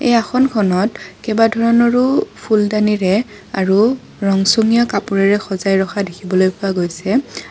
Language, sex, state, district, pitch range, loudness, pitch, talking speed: Assamese, female, Assam, Kamrup Metropolitan, 195-230 Hz, -16 LUFS, 205 Hz, 105 wpm